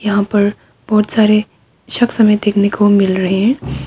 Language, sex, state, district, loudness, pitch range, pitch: Hindi, female, Arunachal Pradesh, Papum Pare, -13 LUFS, 200-215 Hz, 210 Hz